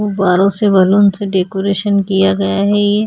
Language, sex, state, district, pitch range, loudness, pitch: Hindi, female, Chhattisgarh, Sukma, 185-205 Hz, -13 LUFS, 195 Hz